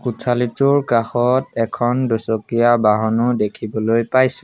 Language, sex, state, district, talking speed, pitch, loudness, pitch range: Assamese, male, Assam, Sonitpur, 95 wpm, 120 Hz, -17 LUFS, 115-125 Hz